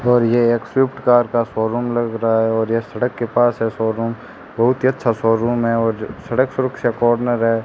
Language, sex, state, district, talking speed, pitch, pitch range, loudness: Hindi, male, Rajasthan, Bikaner, 205 wpm, 115 Hz, 115-120 Hz, -18 LUFS